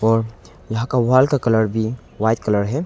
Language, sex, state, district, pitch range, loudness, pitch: Hindi, male, Arunachal Pradesh, Longding, 110-125 Hz, -19 LUFS, 110 Hz